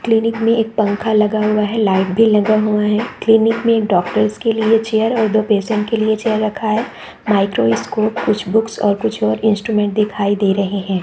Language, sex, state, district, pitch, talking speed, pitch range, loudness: Hindi, female, Bihar, Saharsa, 215 Hz, 200 wpm, 205-225 Hz, -16 LUFS